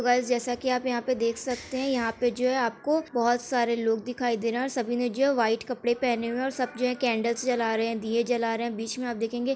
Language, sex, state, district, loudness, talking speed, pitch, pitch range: Hindi, female, Bihar, Saran, -27 LUFS, 270 wpm, 245 Hz, 230-250 Hz